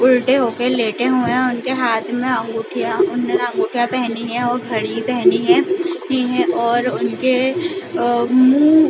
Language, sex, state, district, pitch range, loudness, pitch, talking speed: Hindi, female, Chhattisgarh, Balrampur, 240-305 Hz, -17 LUFS, 255 Hz, 155 wpm